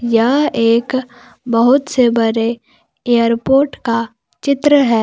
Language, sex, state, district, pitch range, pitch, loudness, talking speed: Hindi, female, Jharkhand, Palamu, 230-270 Hz, 240 Hz, -14 LUFS, 105 wpm